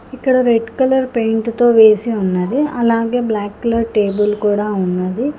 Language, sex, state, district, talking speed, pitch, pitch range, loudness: Telugu, female, Telangana, Hyderabad, 145 wpm, 230 Hz, 210-245 Hz, -15 LUFS